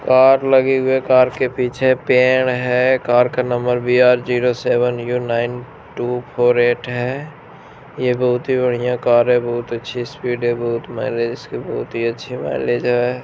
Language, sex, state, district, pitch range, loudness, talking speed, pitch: Hindi, male, Bihar, Jamui, 120-130 Hz, -17 LUFS, 185 wpm, 125 Hz